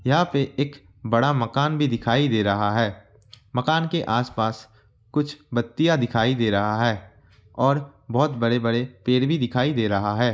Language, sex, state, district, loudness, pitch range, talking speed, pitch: Hindi, male, Bihar, Kishanganj, -23 LUFS, 110-140 Hz, 170 wpm, 120 Hz